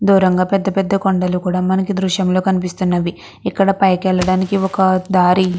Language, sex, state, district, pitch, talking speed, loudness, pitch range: Telugu, female, Andhra Pradesh, Krishna, 185 Hz, 130 wpm, -16 LUFS, 185-195 Hz